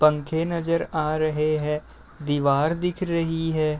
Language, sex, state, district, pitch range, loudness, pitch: Hindi, male, Uttar Pradesh, Deoria, 150-165 Hz, -24 LUFS, 155 Hz